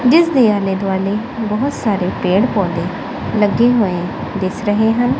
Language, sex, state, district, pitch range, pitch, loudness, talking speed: Punjabi, female, Punjab, Kapurthala, 195-245 Hz, 210 Hz, -16 LUFS, 150 wpm